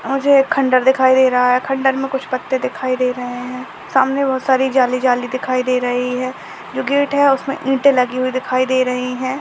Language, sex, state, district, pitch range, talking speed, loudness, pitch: Hindi, female, Chhattisgarh, Jashpur, 255-270 Hz, 215 wpm, -16 LUFS, 260 Hz